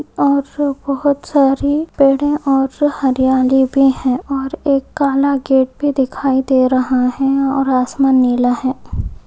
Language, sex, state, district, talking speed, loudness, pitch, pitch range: Hindi, female, Goa, North and South Goa, 140 wpm, -15 LUFS, 270 Hz, 260-280 Hz